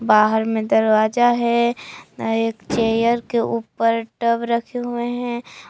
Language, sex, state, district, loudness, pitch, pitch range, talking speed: Hindi, female, Jharkhand, Palamu, -19 LUFS, 230 Hz, 225-235 Hz, 135 wpm